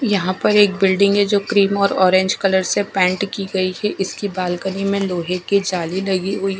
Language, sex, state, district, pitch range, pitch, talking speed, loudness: Hindi, female, Odisha, Khordha, 185-200 Hz, 195 Hz, 210 wpm, -18 LUFS